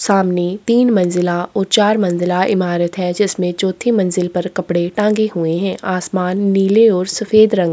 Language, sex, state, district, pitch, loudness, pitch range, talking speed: Hindi, female, Chhattisgarh, Korba, 185 Hz, -15 LUFS, 180-210 Hz, 180 wpm